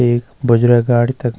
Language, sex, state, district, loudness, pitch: Garhwali, male, Uttarakhand, Uttarkashi, -14 LUFS, 120 Hz